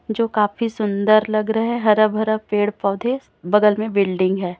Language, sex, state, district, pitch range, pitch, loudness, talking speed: Hindi, female, Chhattisgarh, Raipur, 205-220 Hz, 215 Hz, -19 LUFS, 185 wpm